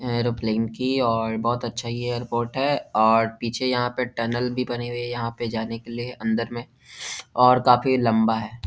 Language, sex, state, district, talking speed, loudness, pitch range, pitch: Hindi, male, Bihar, Jahanabad, 195 wpm, -23 LUFS, 115-125 Hz, 120 Hz